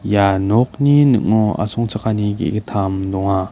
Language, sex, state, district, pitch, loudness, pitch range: Garo, male, Meghalaya, West Garo Hills, 105 Hz, -17 LUFS, 100-115 Hz